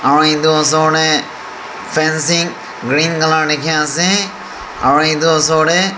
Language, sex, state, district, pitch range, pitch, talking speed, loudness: Nagamese, male, Nagaland, Dimapur, 125-160 Hz, 155 Hz, 120 wpm, -13 LUFS